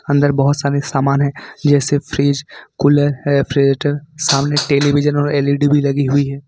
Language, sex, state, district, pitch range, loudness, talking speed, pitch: Hindi, male, Jharkhand, Ranchi, 140-145 Hz, -15 LUFS, 165 wpm, 140 Hz